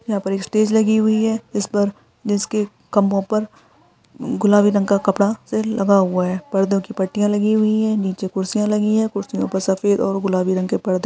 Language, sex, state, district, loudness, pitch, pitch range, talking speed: Hindi, female, Karnataka, Belgaum, -19 LUFS, 205 Hz, 195-215 Hz, 200 wpm